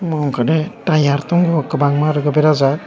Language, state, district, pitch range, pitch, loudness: Kokborok, Tripura, Dhalai, 145-160 Hz, 155 Hz, -16 LUFS